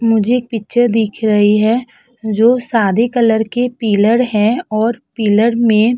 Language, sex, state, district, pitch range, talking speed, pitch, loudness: Hindi, female, Uttar Pradesh, Budaun, 215-240 Hz, 150 wpm, 225 Hz, -14 LUFS